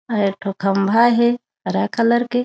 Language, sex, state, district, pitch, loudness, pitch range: Chhattisgarhi, female, Chhattisgarh, Raigarh, 235 Hz, -18 LUFS, 195-240 Hz